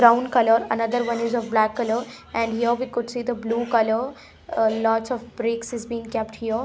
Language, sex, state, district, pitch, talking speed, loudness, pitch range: English, female, Punjab, Pathankot, 230 Hz, 215 wpm, -23 LUFS, 225-240 Hz